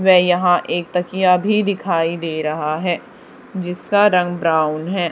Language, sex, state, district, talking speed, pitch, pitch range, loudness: Hindi, female, Haryana, Charkhi Dadri, 150 wpm, 180 Hz, 165-185 Hz, -18 LUFS